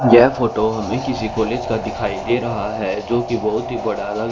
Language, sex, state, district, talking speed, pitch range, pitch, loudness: Hindi, male, Haryana, Rohtak, 210 wpm, 110-120 Hz, 115 Hz, -19 LUFS